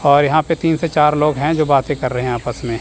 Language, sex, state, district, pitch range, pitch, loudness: Hindi, male, Chandigarh, Chandigarh, 125-155 Hz, 145 Hz, -16 LUFS